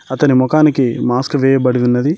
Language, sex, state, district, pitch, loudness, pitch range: Telugu, male, Telangana, Mahabubabad, 130 Hz, -13 LUFS, 125-145 Hz